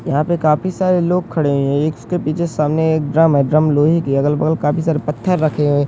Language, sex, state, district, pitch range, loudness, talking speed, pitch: Hindi, male, Uttar Pradesh, Hamirpur, 145-165 Hz, -16 LUFS, 275 wpm, 155 Hz